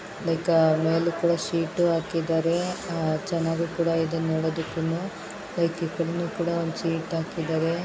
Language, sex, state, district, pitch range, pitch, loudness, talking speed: Kannada, female, Karnataka, Raichur, 165-170 Hz, 165 Hz, -26 LUFS, 120 wpm